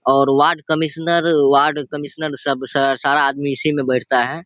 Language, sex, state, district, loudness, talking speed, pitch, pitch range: Hindi, male, Bihar, Saharsa, -16 LUFS, 175 wpm, 145 Hz, 140-155 Hz